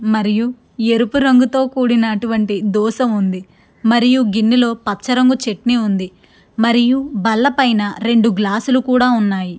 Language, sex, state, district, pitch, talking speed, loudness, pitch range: Telugu, female, Andhra Pradesh, Krishna, 230 Hz, 125 wpm, -15 LUFS, 210-250 Hz